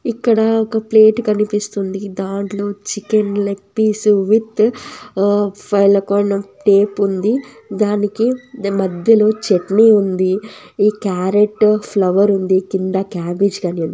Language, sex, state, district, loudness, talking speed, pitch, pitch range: Telugu, female, Andhra Pradesh, Anantapur, -16 LUFS, 105 wpm, 205 Hz, 195-215 Hz